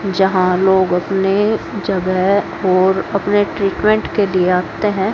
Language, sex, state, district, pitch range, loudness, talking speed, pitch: Hindi, female, Haryana, Jhajjar, 185-200 Hz, -15 LUFS, 130 wpm, 190 Hz